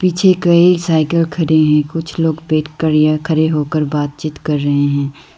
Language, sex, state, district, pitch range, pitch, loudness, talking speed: Hindi, female, Arunachal Pradesh, Lower Dibang Valley, 150-165 Hz, 155 Hz, -14 LUFS, 190 wpm